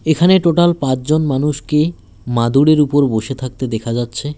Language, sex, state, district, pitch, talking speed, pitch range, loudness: Bengali, male, West Bengal, Alipurduar, 140 Hz, 135 wpm, 120-155 Hz, -15 LUFS